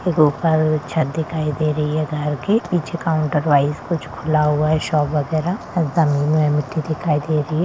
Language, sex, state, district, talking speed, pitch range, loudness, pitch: Hindi, female, Bihar, Darbhanga, 190 wpm, 150-160 Hz, -19 LUFS, 155 Hz